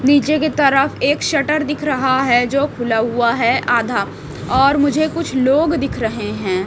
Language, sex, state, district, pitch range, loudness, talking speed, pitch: Hindi, female, Chhattisgarh, Raipur, 235-295 Hz, -16 LUFS, 180 wpm, 270 Hz